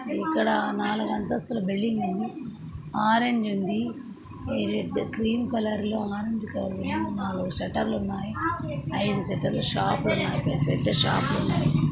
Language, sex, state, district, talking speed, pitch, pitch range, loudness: Telugu, female, Andhra Pradesh, Krishna, 120 wpm, 225 Hz, 210-235 Hz, -26 LUFS